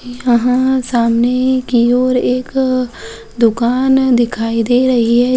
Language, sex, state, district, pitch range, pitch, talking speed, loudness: Hindi, female, Bihar, Bhagalpur, 235-255 Hz, 245 Hz, 110 wpm, -13 LUFS